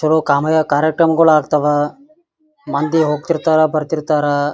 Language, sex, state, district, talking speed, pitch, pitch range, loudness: Kannada, male, Karnataka, Gulbarga, 90 wpm, 155 Hz, 150-165 Hz, -15 LUFS